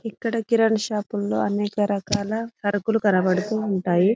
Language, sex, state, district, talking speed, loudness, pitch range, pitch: Telugu, female, Telangana, Karimnagar, 130 wpm, -23 LUFS, 200-225 Hz, 210 Hz